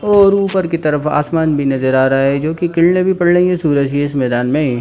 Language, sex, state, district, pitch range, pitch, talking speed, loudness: Hindi, male, Chhattisgarh, Bilaspur, 140-175 Hz, 150 Hz, 275 wpm, -14 LUFS